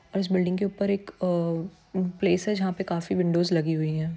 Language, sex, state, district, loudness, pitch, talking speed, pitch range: Hindi, female, Uttarakhand, Tehri Garhwal, -26 LUFS, 180 Hz, 215 wpm, 170-195 Hz